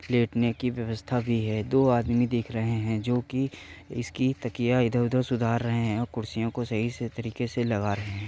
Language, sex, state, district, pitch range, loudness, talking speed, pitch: Hindi, male, Uttar Pradesh, Varanasi, 110-120 Hz, -27 LUFS, 195 wpm, 120 Hz